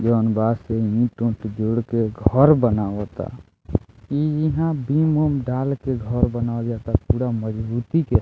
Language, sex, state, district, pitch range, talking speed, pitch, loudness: Bhojpuri, male, Bihar, Muzaffarpur, 110-130 Hz, 155 wpm, 115 Hz, -21 LUFS